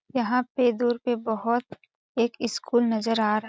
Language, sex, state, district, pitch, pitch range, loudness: Hindi, female, Chhattisgarh, Balrampur, 235 Hz, 225-245 Hz, -25 LUFS